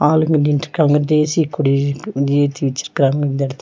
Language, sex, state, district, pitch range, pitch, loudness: Tamil, female, Tamil Nadu, Nilgiris, 140-150 Hz, 145 Hz, -17 LUFS